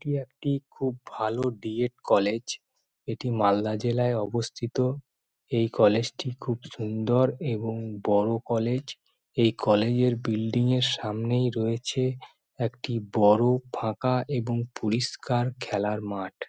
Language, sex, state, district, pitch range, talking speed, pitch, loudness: Bengali, male, West Bengal, Malda, 110-125 Hz, 120 wpm, 120 Hz, -27 LUFS